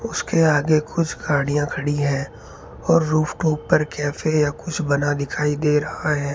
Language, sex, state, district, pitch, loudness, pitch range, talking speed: Hindi, male, Rajasthan, Bikaner, 150 Hz, -21 LUFS, 145-155 Hz, 170 wpm